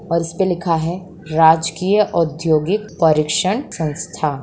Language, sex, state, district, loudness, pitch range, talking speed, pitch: Hindi, female, Bihar, Sitamarhi, -17 LUFS, 160-185 Hz, 110 wpm, 170 Hz